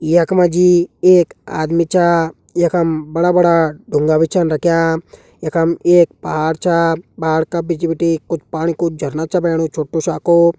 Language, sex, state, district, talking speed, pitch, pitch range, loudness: Garhwali, male, Uttarakhand, Uttarkashi, 160 wpm, 165 Hz, 160-175 Hz, -15 LUFS